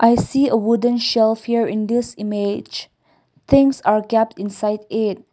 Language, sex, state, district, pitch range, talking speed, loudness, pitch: English, female, Nagaland, Kohima, 210-235 Hz, 155 wpm, -18 LUFS, 225 Hz